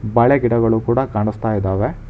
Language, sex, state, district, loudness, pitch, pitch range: Kannada, male, Karnataka, Bangalore, -17 LUFS, 115 Hz, 105-120 Hz